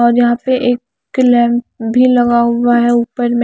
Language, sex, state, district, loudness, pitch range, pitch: Hindi, female, Himachal Pradesh, Shimla, -13 LUFS, 240-245 Hz, 240 Hz